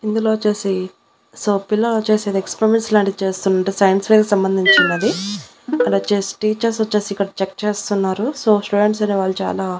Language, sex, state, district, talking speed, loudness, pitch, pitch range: Telugu, female, Andhra Pradesh, Annamaya, 140 wpm, -17 LUFS, 205 Hz, 195-215 Hz